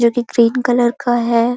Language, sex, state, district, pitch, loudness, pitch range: Hindi, female, Chhattisgarh, Korba, 240 Hz, -15 LUFS, 235-245 Hz